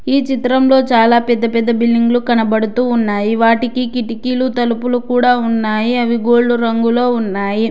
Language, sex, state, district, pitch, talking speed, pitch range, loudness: Telugu, female, Telangana, Hyderabad, 235 Hz, 130 wpm, 230-245 Hz, -14 LUFS